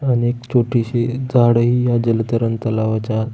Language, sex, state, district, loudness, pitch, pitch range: Marathi, male, Maharashtra, Pune, -17 LUFS, 120 Hz, 115-120 Hz